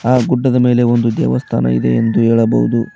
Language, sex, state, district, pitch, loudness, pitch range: Kannada, male, Karnataka, Koppal, 115 Hz, -14 LUFS, 110-125 Hz